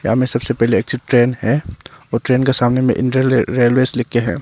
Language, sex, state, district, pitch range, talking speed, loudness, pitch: Hindi, male, Arunachal Pradesh, Longding, 120-130 Hz, 230 wpm, -16 LUFS, 125 Hz